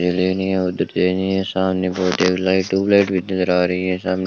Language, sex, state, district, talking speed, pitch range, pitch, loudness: Hindi, male, Rajasthan, Bikaner, 140 wpm, 90-95 Hz, 95 Hz, -19 LUFS